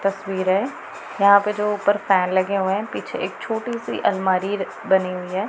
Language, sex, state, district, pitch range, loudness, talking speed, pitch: Hindi, female, Punjab, Pathankot, 190-205 Hz, -21 LUFS, 195 wpm, 195 Hz